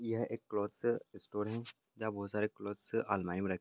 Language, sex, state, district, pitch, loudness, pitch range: Hindi, male, Andhra Pradesh, Anantapur, 105 Hz, -39 LUFS, 100-115 Hz